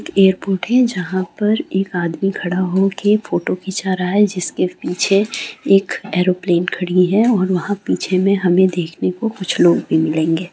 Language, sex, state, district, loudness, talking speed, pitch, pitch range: Hindi, female, Bihar, Saran, -17 LUFS, 175 wpm, 190 Hz, 180-200 Hz